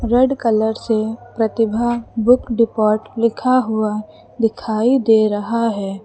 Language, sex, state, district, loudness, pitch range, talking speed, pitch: Hindi, female, Uttar Pradesh, Lucknow, -17 LUFS, 220-235 Hz, 120 wpm, 225 Hz